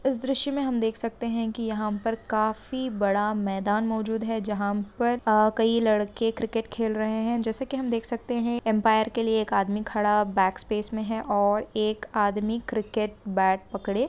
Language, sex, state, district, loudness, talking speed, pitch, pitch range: Hindi, female, Andhra Pradesh, Guntur, -26 LUFS, 190 wpm, 220 Hz, 210-230 Hz